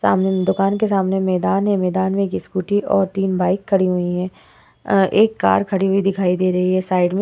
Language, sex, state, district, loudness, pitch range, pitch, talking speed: Hindi, female, Uttar Pradesh, Etah, -18 LUFS, 185-195 Hz, 190 Hz, 230 wpm